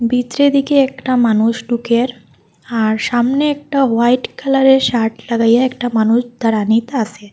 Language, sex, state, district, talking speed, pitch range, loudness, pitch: Bengali, female, Assam, Hailakandi, 140 wpm, 230-265 Hz, -15 LUFS, 240 Hz